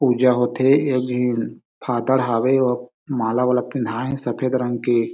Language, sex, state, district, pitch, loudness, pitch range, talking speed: Chhattisgarhi, male, Chhattisgarh, Sarguja, 125 Hz, -20 LUFS, 120-130 Hz, 165 wpm